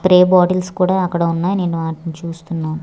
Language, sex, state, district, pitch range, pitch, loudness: Telugu, female, Andhra Pradesh, Manyam, 165-185 Hz, 175 Hz, -17 LUFS